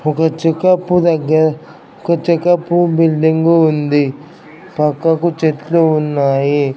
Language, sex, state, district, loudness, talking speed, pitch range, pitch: Telugu, male, Andhra Pradesh, Krishna, -14 LUFS, 90 wpm, 150-170 Hz, 160 Hz